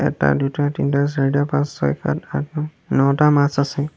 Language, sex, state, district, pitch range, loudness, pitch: Assamese, male, Assam, Sonitpur, 140-150 Hz, -19 LUFS, 145 Hz